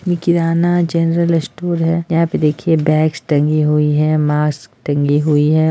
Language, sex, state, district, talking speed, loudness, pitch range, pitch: Hindi, female, Bihar, Jahanabad, 155 wpm, -15 LUFS, 150-170 Hz, 155 Hz